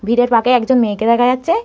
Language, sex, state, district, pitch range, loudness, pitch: Bengali, female, West Bengal, Malda, 230-250 Hz, -14 LUFS, 245 Hz